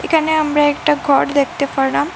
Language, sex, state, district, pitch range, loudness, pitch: Bengali, female, Assam, Hailakandi, 280-310 Hz, -16 LUFS, 295 Hz